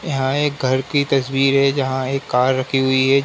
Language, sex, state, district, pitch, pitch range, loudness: Hindi, male, Uttar Pradesh, Ghazipur, 135 Hz, 130-140 Hz, -18 LUFS